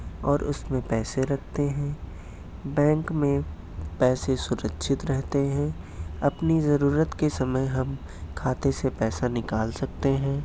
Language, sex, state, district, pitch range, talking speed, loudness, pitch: Hindi, male, Uttar Pradesh, Hamirpur, 110-145 Hz, 125 wpm, -26 LUFS, 130 Hz